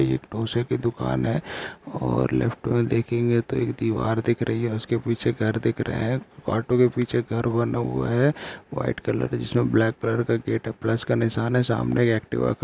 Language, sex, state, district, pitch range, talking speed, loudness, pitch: Hindi, male, Jharkhand, Sahebganj, 110-120 Hz, 220 wpm, -24 LUFS, 115 Hz